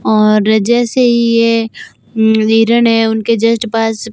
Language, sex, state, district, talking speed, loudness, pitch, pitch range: Hindi, female, Rajasthan, Barmer, 130 wpm, -11 LUFS, 225 Hz, 220-230 Hz